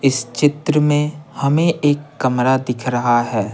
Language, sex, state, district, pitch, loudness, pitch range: Hindi, male, Bihar, Patna, 140 Hz, -17 LUFS, 125-150 Hz